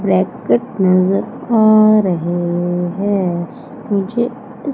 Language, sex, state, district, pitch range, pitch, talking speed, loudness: Hindi, female, Madhya Pradesh, Umaria, 185-240 Hz, 200 Hz, 90 wpm, -15 LUFS